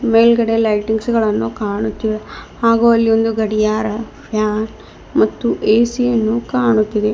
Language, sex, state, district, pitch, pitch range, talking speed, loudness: Kannada, female, Karnataka, Bidar, 220 Hz, 215-230 Hz, 110 wpm, -16 LUFS